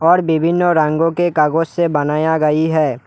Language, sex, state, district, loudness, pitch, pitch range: Hindi, male, West Bengal, Alipurduar, -15 LUFS, 160 Hz, 150-170 Hz